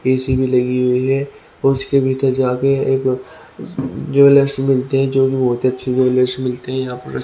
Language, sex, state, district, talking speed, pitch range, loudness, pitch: Hindi, male, Haryana, Rohtak, 225 wpm, 125-135 Hz, -16 LUFS, 130 Hz